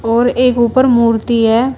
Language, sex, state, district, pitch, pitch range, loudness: Hindi, female, Uttar Pradesh, Shamli, 235 Hz, 230-255 Hz, -12 LUFS